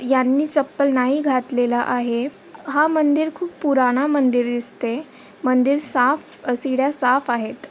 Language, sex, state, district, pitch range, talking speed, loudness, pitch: Marathi, female, Maharashtra, Aurangabad, 245-290 Hz, 125 wpm, -20 LUFS, 265 Hz